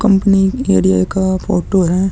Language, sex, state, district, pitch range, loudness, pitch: Hindi, male, Chhattisgarh, Sukma, 175-195 Hz, -14 LUFS, 190 Hz